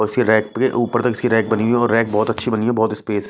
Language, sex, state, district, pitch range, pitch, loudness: Hindi, male, Punjab, Kapurthala, 110-120 Hz, 115 Hz, -18 LUFS